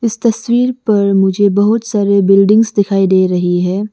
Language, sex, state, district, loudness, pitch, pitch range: Hindi, female, Arunachal Pradesh, Lower Dibang Valley, -12 LUFS, 200 Hz, 195-225 Hz